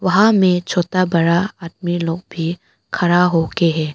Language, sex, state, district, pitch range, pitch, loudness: Hindi, female, Arunachal Pradesh, Papum Pare, 165-185 Hz, 175 Hz, -17 LUFS